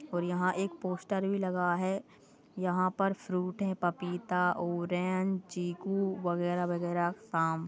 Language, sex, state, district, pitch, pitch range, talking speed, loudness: Hindi, female, Goa, North and South Goa, 180 Hz, 175-190 Hz, 135 wpm, -33 LUFS